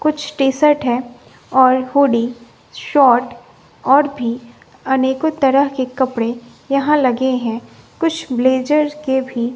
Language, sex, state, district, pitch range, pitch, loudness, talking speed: Hindi, female, Bihar, West Champaran, 245-280 Hz, 260 Hz, -16 LUFS, 130 wpm